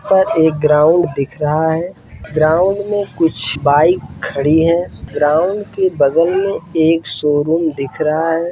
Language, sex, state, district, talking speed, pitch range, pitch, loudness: Hindi, male, Bihar, Kishanganj, 150 wpm, 150-175 Hz, 160 Hz, -15 LUFS